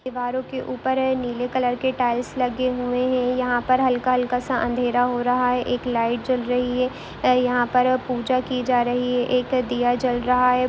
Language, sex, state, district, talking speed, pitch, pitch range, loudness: Hindi, female, Bihar, Muzaffarpur, 220 wpm, 250 Hz, 245-255 Hz, -22 LUFS